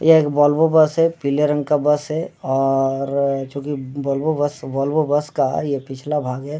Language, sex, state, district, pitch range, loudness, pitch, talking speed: Hindi, male, Bihar, Darbhanga, 140-150 Hz, -19 LUFS, 145 Hz, 190 wpm